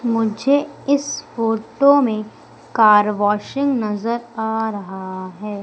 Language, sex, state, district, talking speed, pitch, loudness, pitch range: Hindi, female, Madhya Pradesh, Umaria, 105 wpm, 225 Hz, -19 LUFS, 210-250 Hz